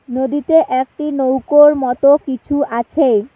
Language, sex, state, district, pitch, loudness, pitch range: Bengali, female, West Bengal, Alipurduar, 275 Hz, -14 LUFS, 260-295 Hz